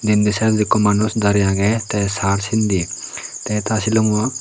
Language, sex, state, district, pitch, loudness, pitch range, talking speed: Chakma, male, Tripura, Unakoti, 105 Hz, -18 LUFS, 100-110 Hz, 150 wpm